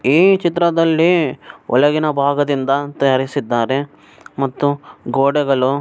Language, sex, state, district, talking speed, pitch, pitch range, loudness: Kannada, male, Karnataka, Bellary, 70 wpm, 140 Hz, 135-150 Hz, -16 LUFS